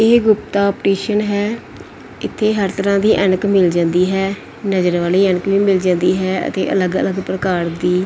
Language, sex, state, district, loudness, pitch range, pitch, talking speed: Punjabi, female, Punjab, Pathankot, -16 LUFS, 180-200 Hz, 195 Hz, 185 wpm